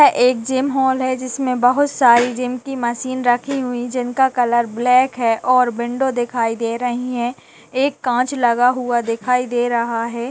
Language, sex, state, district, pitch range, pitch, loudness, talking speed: Hindi, female, Uttar Pradesh, Jalaun, 240-255 Hz, 250 Hz, -18 LUFS, 175 wpm